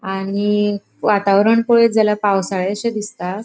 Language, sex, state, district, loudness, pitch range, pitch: Konkani, female, Goa, North and South Goa, -17 LUFS, 195-215 Hz, 205 Hz